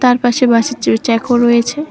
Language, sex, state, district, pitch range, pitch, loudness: Bengali, female, West Bengal, Cooch Behar, 235-250 Hz, 245 Hz, -13 LUFS